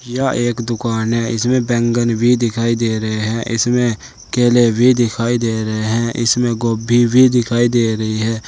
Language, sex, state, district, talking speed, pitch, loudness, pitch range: Hindi, male, Uttar Pradesh, Saharanpur, 175 wpm, 115 Hz, -16 LUFS, 115-120 Hz